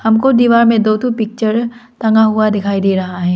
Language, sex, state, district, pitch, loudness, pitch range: Hindi, female, Arunachal Pradesh, Lower Dibang Valley, 220 Hz, -13 LUFS, 210-235 Hz